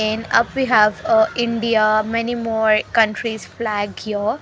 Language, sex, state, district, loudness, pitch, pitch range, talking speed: English, female, Haryana, Rohtak, -18 LUFS, 225 Hz, 215-235 Hz, 150 wpm